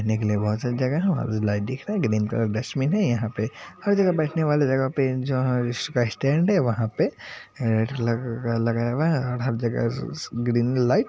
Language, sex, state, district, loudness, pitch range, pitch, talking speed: Hindi, male, Bihar, Madhepura, -24 LUFS, 115-140 Hz, 125 Hz, 245 wpm